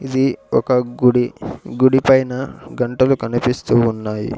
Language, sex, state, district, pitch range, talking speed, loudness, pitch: Telugu, male, Andhra Pradesh, Sri Satya Sai, 120-130 Hz, 110 wpm, -17 LUFS, 125 Hz